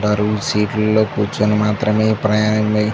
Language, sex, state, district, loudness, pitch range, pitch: Telugu, male, Andhra Pradesh, Chittoor, -17 LUFS, 105-110 Hz, 105 Hz